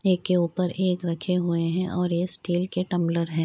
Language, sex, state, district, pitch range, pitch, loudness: Hindi, female, Bihar, Muzaffarpur, 170-185 Hz, 180 Hz, -25 LUFS